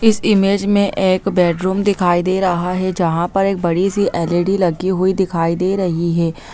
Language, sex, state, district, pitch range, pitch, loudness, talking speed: Hindi, female, Bihar, Muzaffarpur, 170-195 Hz, 185 Hz, -16 LUFS, 190 wpm